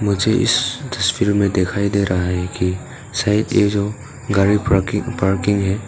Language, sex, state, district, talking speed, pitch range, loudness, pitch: Hindi, male, Arunachal Pradesh, Papum Pare, 165 wpm, 95-115 Hz, -18 LUFS, 100 Hz